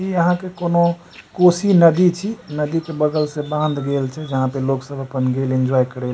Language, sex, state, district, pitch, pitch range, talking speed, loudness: Maithili, male, Bihar, Supaul, 150 Hz, 135-170 Hz, 225 wpm, -18 LUFS